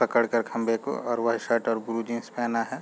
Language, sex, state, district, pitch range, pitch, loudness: Hindi, male, Chhattisgarh, Raigarh, 115-120 Hz, 115 Hz, -27 LUFS